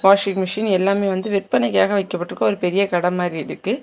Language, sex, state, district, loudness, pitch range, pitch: Tamil, female, Tamil Nadu, Kanyakumari, -20 LUFS, 180-200 Hz, 195 Hz